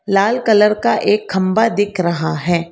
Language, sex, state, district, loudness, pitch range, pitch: Hindi, female, Karnataka, Bangalore, -15 LUFS, 175-210 Hz, 195 Hz